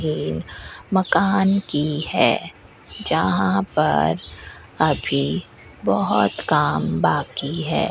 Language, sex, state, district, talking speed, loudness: Hindi, female, Rajasthan, Bikaner, 85 wpm, -20 LUFS